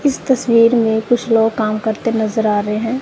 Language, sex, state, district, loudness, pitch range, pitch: Hindi, female, Punjab, Kapurthala, -15 LUFS, 220-240 Hz, 225 Hz